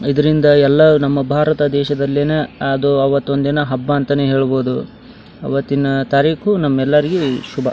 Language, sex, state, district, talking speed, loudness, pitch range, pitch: Kannada, male, Karnataka, Dharwad, 115 wpm, -15 LUFS, 140-150 Hz, 140 Hz